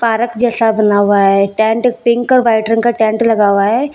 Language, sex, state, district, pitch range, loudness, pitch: Hindi, female, Bihar, Katihar, 210-235 Hz, -12 LUFS, 225 Hz